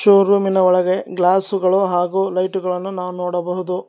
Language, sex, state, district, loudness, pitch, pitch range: Kannada, male, Karnataka, Bangalore, -18 LUFS, 185 Hz, 180-195 Hz